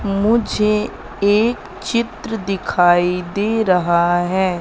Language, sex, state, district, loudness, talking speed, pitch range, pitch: Hindi, female, Madhya Pradesh, Katni, -17 LUFS, 90 wpm, 180-225 Hz, 200 Hz